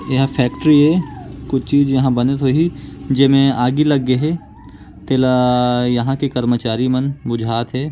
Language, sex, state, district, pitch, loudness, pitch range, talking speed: Chhattisgarhi, male, Chhattisgarh, Korba, 130 Hz, -16 LUFS, 125-140 Hz, 150 wpm